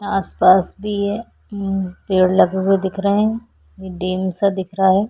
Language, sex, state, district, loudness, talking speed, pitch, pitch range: Hindi, female, Chhattisgarh, Sukma, -18 LUFS, 175 wpm, 195 Hz, 185-200 Hz